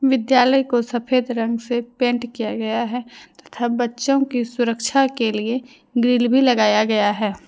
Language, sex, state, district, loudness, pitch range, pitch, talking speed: Hindi, female, Jharkhand, Deoghar, -19 LUFS, 230-250 Hz, 240 Hz, 160 wpm